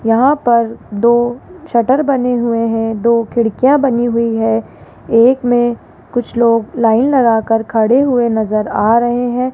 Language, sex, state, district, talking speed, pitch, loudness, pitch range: Hindi, female, Rajasthan, Jaipur, 150 wpm, 235 Hz, -13 LUFS, 225-245 Hz